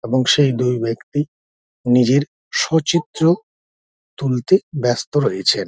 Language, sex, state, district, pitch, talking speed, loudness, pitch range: Bengali, male, West Bengal, Dakshin Dinajpur, 130 Hz, 105 wpm, -18 LUFS, 120-160 Hz